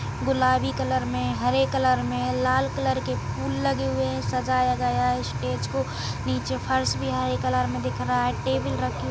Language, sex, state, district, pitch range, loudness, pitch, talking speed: Kumaoni, female, Uttarakhand, Tehri Garhwal, 125-130 Hz, -25 LUFS, 125 Hz, 200 wpm